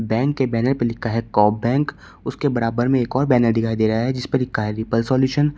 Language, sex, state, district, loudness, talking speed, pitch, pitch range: Hindi, male, Uttar Pradesh, Shamli, -20 LUFS, 260 wpm, 120 Hz, 115-130 Hz